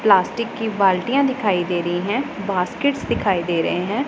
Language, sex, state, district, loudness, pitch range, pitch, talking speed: Hindi, female, Punjab, Pathankot, -20 LUFS, 180-245 Hz, 200 Hz, 190 wpm